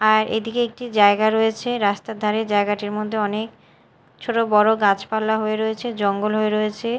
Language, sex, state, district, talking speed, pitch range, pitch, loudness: Bengali, female, Odisha, Malkangiri, 155 wpm, 210-220 Hz, 215 Hz, -20 LUFS